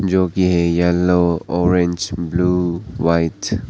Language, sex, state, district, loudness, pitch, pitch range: Hindi, male, Arunachal Pradesh, Papum Pare, -17 LUFS, 90 Hz, 85-90 Hz